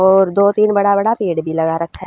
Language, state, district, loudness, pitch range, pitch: Haryanvi, Haryana, Rohtak, -15 LUFS, 165-200 Hz, 195 Hz